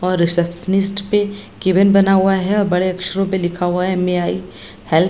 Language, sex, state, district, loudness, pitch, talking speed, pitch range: Hindi, female, Bihar, Jamui, -17 LUFS, 185 Hz, 210 wpm, 175-195 Hz